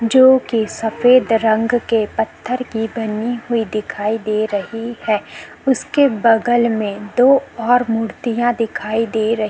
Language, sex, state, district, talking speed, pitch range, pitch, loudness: Hindi, female, Uttarakhand, Tehri Garhwal, 145 wpm, 220-240 Hz, 225 Hz, -17 LUFS